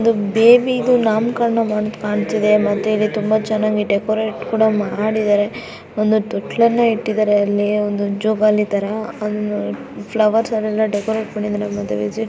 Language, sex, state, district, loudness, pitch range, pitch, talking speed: Kannada, female, Karnataka, Raichur, -17 LUFS, 210-220 Hz, 215 Hz, 120 wpm